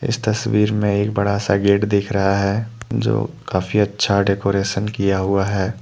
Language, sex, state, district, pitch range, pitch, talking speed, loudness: Hindi, male, Jharkhand, Deoghar, 100-110 Hz, 100 Hz, 175 wpm, -19 LUFS